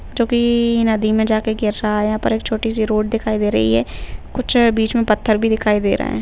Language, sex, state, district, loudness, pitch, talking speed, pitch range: Hindi, female, Uttarakhand, Uttarkashi, -17 LUFS, 220 Hz, 260 wpm, 210-225 Hz